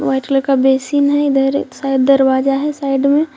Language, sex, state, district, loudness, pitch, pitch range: Hindi, female, Jharkhand, Deoghar, -14 LUFS, 275 Hz, 270-285 Hz